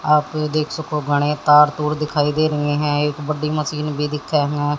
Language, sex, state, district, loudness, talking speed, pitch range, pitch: Hindi, female, Haryana, Jhajjar, -19 LUFS, 200 wpm, 145-150 Hz, 150 Hz